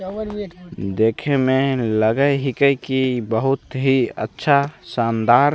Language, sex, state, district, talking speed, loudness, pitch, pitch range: Maithili, male, Bihar, Begusarai, 120 wpm, -19 LUFS, 135 Hz, 120-145 Hz